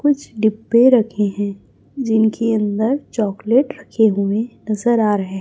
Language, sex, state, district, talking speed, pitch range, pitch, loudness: Hindi, male, Chhattisgarh, Raipur, 135 wpm, 210-240 Hz, 220 Hz, -18 LUFS